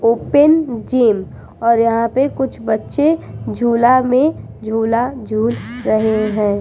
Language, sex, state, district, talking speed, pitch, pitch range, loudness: Hindi, female, Bihar, Vaishali, 120 wpm, 235 Hz, 220-260 Hz, -16 LUFS